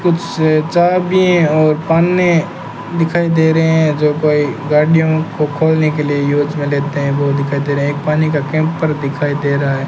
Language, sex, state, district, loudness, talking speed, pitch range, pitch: Hindi, male, Rajasthan, Bikaner, -14 LUFS, 190 wpm, 145-165 Hz, 155 Hz